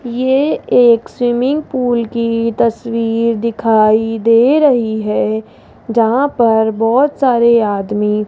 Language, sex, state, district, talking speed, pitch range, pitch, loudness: Hindi, female, Rajasthan, Jaipur, 115 wpm, 225-245 Hz, 230 Hz, -13 LUFS